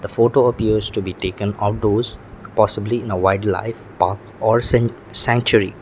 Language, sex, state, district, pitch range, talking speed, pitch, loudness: English, male, Sikkim, Gangtok, 100-115 Hz, 145 wpm, 110 Hz, -19 LUFS